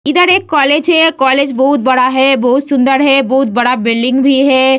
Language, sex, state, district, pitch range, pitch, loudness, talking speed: Hindi, female, Bihar, Vaishali, 260-285 Hz, 270 Hz, -10 LUFS, 200 wpm